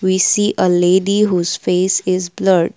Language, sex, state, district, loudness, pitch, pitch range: English, female, Assam, Kamrup Metropolitan, -15 LUFS, 185 Hz, 180-190 Hz